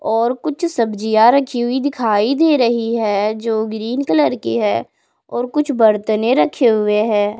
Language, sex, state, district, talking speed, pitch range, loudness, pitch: Hindi, female, Bihar, Patna, 160 wpm, 220-265 Hz, -16 LUFS, 230 Hz